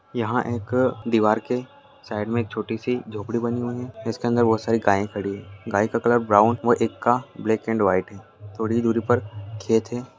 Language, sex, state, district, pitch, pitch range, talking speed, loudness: Maithili, male, Bihar, Purnia, 115 Hz, 105-120 Hz, 220 wpm, -23 LUFS